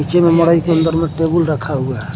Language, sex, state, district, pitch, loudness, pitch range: Hindi, male, Jharkhand, Garhwa, 165 Hz, -15 LUFS, 150-170 Hz